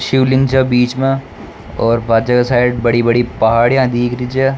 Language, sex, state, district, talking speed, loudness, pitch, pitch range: Rajasthani, male, Rajasthan, Nagaur, 155 wpm, -13 LUFS, 125 Hz, 120-130 Hz